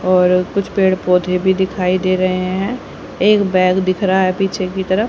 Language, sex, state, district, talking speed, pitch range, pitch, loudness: Hindi, female, Haryana, Rohtak, 200 wpm, 185-195 Hz, 185 Hz, -16 LUFS